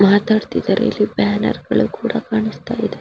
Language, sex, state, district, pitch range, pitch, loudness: Kannada, female, Karnataka, Raichur, 215-225 Hz, 220 Hz, -18 LUFS